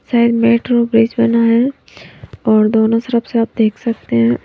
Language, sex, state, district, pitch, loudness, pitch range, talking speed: Hindi, female, Maharashtra, Mumbai Suburban, 230 Hz, -14 LUFS, 225-235 Hz, 175 wpm